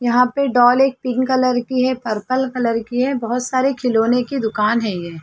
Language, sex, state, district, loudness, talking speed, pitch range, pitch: Hindi, female, Chhattisgarh, Balrampur, -18 LUFS, 230 wpm, 230-260 Hz, 250 Hz